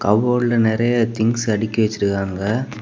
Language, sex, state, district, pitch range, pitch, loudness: Tamil, male, Tamil Nadu, Kanyakumari, 105-120 Hz, 110 Hz, -19 LUFS